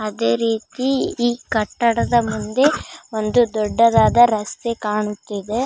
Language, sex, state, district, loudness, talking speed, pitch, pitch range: Kannada, female, Karnataka, Raichur, -19 LUFS, 105 wpm, 225 Hz, 215-240 Hz